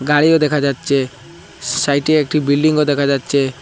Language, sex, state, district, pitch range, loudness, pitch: Bengali, male, Assam, Hailakandi, 140-150 Hz, -15 LUFS, 145 Hz